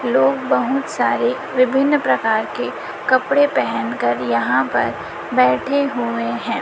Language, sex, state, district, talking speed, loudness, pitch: Hindi, female, Chhattisgarh, Raipur, 120 wpm, -18 LUFS, 220 Hz